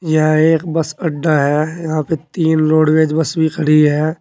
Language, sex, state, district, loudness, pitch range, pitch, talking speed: Hindi, male, Uttar Pradesh, Saharanpur, -15 LUFS, 155-160 Hz, 155 Hz, 185 wpm